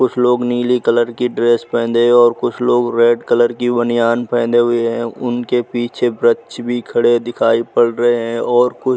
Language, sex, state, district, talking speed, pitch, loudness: Hindi, male, Uttar Pradesh, Muzaffarnagar, 200 wpm, 120 Hz, -15 LUFS